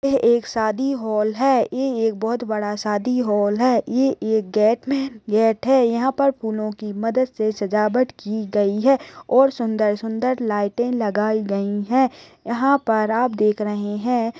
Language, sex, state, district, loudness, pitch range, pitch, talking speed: Hindi, female, Uttar Pradesh, Deoria, -20 LUFS, 210-255 Hz, 225 Hz, 160 wpm